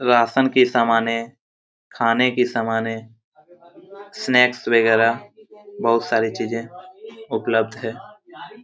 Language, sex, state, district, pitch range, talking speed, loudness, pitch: Hindi, male, Jharkhand, Jamtara, 115-175 Hz, 90 wpm, -19 LUFS, 120 Hz